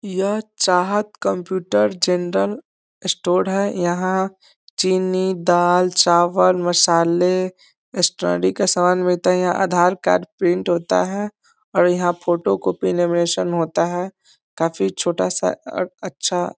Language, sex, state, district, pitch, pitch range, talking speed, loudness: Hindi, male, Bihar, East Champaran, 180 Hz, 170-185 Hz, 125 wpm, -19 LUFS